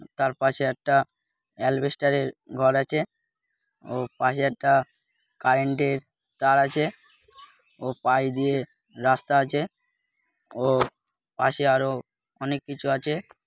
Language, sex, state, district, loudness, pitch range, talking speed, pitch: Bengali, male, West Bengal, Malda, -25 LUFS, 130-145 Hz, 105 wpm, 135 Hz